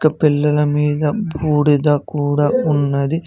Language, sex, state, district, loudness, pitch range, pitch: Telugu, male, Telangana, Mahabubabad, -16 LUFS, 145-155 Hz, 150 Hz